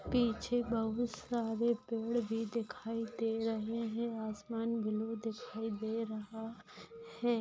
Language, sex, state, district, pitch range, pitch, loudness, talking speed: Hindi, female, Maharashtra, Dhule, 220-235 Hz, 225 Hz, -37 LUFS, 120 wpm